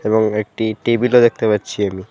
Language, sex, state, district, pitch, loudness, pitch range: Bengali, male, Tripura, West Tripura, 110 Hz, -17 LUFS, 105-115 Hz